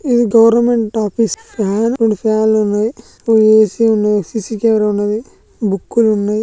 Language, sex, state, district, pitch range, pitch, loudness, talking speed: Telugu, male, Andhra Pradesh, Guntur, 210-230 Hz, 220 Hz, -14 LUFS, 140 wpm